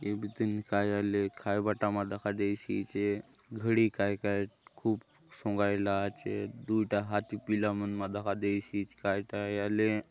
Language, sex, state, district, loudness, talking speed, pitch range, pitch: Halbi, male, Chhattisgarh, Bastar, -33 LUFS, 185 wpm, 100-105 Hz, 100 Hz